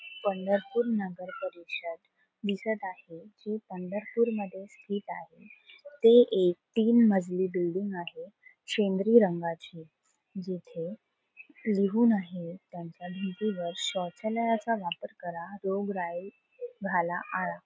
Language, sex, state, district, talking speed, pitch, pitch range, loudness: Marathi, female, Maharashtra, Solapur, 100 wpm, 195 Hz, 180-225 Hz, -29 LUFS